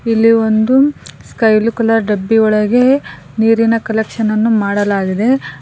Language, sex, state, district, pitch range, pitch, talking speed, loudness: Kannada, female, Karnataka, Koppal, 215-230 Hz, 225 Hz, 115 wpm, -13 LUFS